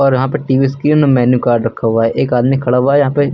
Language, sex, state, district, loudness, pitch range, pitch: Hindi, male, Uttar Pradesh, Lucknow, -13 LUFS, 125-140 Hz, 130 Hz